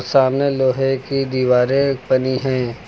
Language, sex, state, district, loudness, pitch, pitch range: Hindi, male, Uttar Pradesh, Lucknow, -18 LUFS, 130 Hz, 130-135 Hz